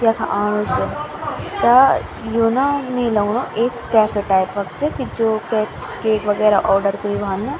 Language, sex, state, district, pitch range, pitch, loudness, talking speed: Garhwali, female, Uttarakhand, Tehri Garhwal, 205-230 Hz, 215 Hz, -18 LUFS, 165 wpm